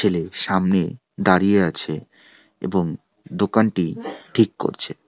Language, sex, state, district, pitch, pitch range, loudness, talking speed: Bengali, male, West Bengal, Alipurduar, 95 Hz, 90-100 Hz, -21 LUFS, 95 wpm